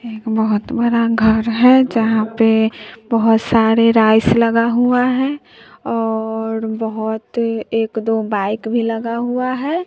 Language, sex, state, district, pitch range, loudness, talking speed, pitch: Hindi, female, Bihar, West Champaran, 220-235 Hz, -16 LUFS, 130 wpm, 225 Hz